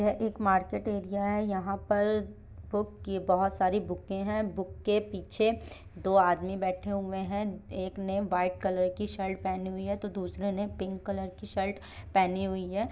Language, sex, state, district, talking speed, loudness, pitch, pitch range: Hindi, female, Bihar, Jahanabad, 185 wpm, -31 LUFS, 195 Hz, 190-205 Hz